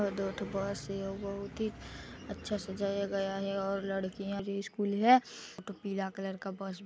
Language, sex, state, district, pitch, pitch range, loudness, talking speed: Hindi, female, Chhattisgarh, Sarguja, 195 Hz, 195-200 Hz, -34 LUFS, 190 wpm